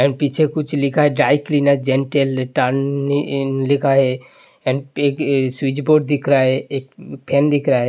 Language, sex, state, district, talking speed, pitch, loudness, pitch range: Hindi, male, Uttar Pradesh, Hamirpur, 160 wpm, 140 Hz, -17 LUFS, 135-145 Hz